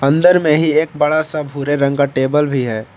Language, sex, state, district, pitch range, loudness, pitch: Hindi, male, Jharkhand, Palamu, 140-155 Hz, -15 LUFS, 145 Hz